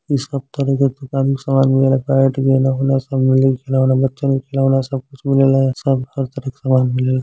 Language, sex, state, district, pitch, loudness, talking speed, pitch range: Bhojpuri, male, Uttar Pradesh, Gorakhpur, 135 Hz, -16 LUFS, 200 wpm, 130-135 Hz